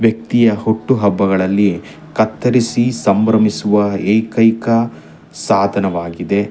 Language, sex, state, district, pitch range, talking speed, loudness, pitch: Kannada, male, Karnataka, Chamarajanagar, 100-115 Hz, 55 wpm, -15 LUFS, 105 Hz